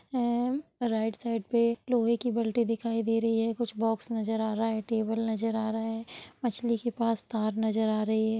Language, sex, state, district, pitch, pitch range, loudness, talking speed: Hindi, female, Bihar, Sitamarhi, 225 Hz, 220-235 Hz, -29 LUFS, 220 wpm